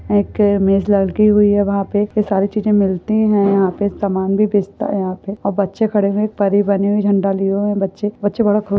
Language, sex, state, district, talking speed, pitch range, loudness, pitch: Hindi, female, West Bengal, Purulia, 220 wpm, 195-210 Hz, -16 LUFS, 205 Hz